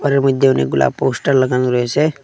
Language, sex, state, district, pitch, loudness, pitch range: Bengali, male, Assam, Hailakandi, 130 Hz, -15 LUFS, 120-140 Hz